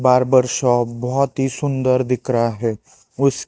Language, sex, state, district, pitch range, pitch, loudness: Hindi, male, Chhattisgarh, Raipur, 120-135 Hz, 130 Hz, -18 LUFS